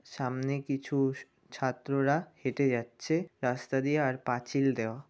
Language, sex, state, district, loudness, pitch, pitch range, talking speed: Bengali, male, West Bengal, North 24 Parganas, -31 LUFS, 135 Hz, 125-140 Hz, 130 wpm